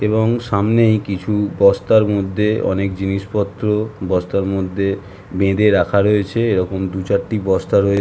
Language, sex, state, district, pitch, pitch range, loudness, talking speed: Bengali, male, West Bengal, Jhargram, 100 Hz, 95-105 Hz, -17 LUFS, 125 wpm